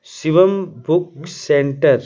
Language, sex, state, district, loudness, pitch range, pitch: Hindi, male, Bihar, Patna, -16 LUFS, 145-175 Hz, 165 Hz